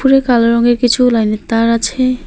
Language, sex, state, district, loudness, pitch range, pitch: Bengali, female, West Bengal, Alipurduar, -12 LUFS, 230-255 Hz, 240 Hz